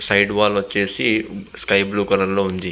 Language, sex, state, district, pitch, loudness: Telugu, male, Andhra Pradesh, Visakhapatnam, 100 Hz, -18 LUFS